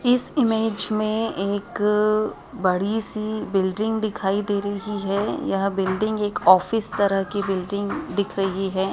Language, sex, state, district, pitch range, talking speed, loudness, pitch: Hindi, female, Madhya Pradesh, Dhar, 195-215 Hz, 140 wpm, -22 LUFS, 205 Hz